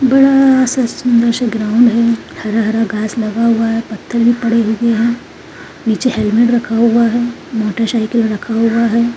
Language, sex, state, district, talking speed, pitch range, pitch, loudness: Hindi, female, Uttarakhand, Tehri Garhwal, 165 wpm, 225-240 Hz, 230 Hz, -13 LUFS